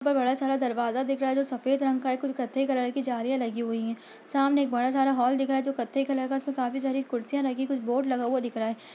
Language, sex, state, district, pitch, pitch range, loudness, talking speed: Hindi, female, Uttar Pradesh, Budaun, 265 Hz, 245-270 Hz, -28 LUFS, 310 wpm